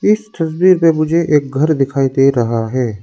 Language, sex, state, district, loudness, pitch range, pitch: Hindi, male, Arunachal Pradesh, Lower Dibang Valley, -14 LUFS, 135-165 Hz, 150 Hz